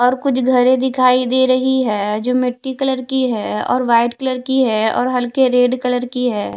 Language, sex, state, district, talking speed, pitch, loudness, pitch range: Hindi, female, Himachal Pradesh, Shimla, 210 wpm, 255 Hz, -16 LUFS, 245-260 Hz